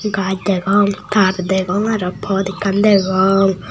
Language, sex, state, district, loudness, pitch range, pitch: Chakma, male, Tripura, Unakoti, -16 LUFS, 190-205 Hz, 195 Hz